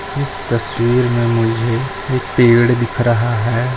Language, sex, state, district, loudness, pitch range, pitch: Hindi, male, Goa, North and South Goa, -15 LUFS, 115-125 Hz, 120 Hz